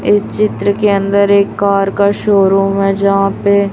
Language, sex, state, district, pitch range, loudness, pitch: Hindi, female, Chhattisgarh, Raipur, 195-200 Hz, -12 LUFS, 200 Hz